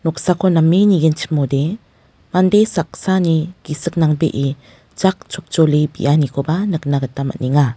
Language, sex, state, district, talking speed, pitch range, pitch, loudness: Garo, female, Meghalaya, West Garo Hills, 100 wpm, 140-180 Hz, 160 Hz, -17 LUFS